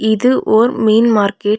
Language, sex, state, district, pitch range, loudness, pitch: Tamil, female, Tamil Nadu, Nilgiris, 210-230 Hz, -12 LUFS, 220 Hz